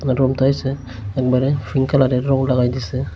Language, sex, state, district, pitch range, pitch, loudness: Bengali, male, Tripura, Unakoti, 125-135 Hz, 130 Hz, -18 LUFS